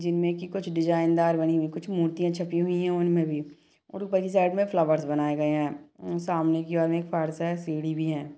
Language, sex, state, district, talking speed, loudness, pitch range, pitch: Hindi, female, Chhattisgarh, Kabirdham, 235 wpm, -27 LUFS, 160-175 Hz, 165 Hz